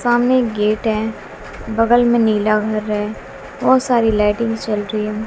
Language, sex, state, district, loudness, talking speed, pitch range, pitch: Hindi, female, Bihar, West Champaran, -17 LUFS, 160 wpm, 210-235 Hz, 220 Hz